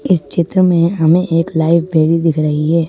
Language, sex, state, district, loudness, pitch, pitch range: Hindi, male, Madhya Pradesh, Bhopal, -13 LUFS, 165 Hz, 160-170 Hz